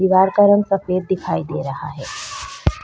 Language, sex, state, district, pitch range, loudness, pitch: Hindi, female, Uttar Pradesh, Budaun, 190-295 Hz, -19 LUFS, 195 Hz